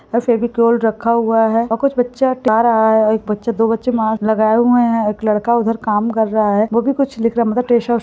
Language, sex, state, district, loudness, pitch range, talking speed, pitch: Hindi, female, Bihar, Jahanabad, -15 LUFS, 220-235 Hz, 245 wpm, 230 Hz